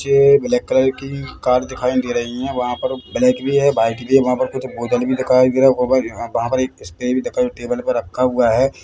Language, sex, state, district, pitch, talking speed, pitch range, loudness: Hindi, male, Chhattisgarh, Bilaspur, 130 Hz, 260 wpm, 125-135 Hz, -17 LUFS